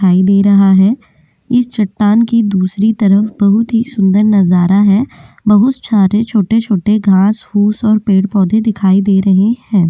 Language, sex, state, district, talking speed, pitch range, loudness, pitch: Hindi, female, Goa, North and South Goa, 150 wpm, 195-220 Hz, -11 LUFS, 205 Hz